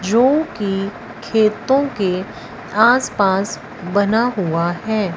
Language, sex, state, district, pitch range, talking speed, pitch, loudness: Hindi, female, Punjab, Fazilka, 190-235 Hz, 105 wpm, 210 Hz, -18 LUFS